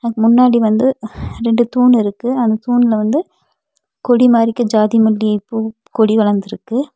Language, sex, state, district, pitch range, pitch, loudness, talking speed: Tamil, female, Tamil Nadu, Nilgiris, 220-245 Hz, 230 Hz, -14 LUFS, 130 wpm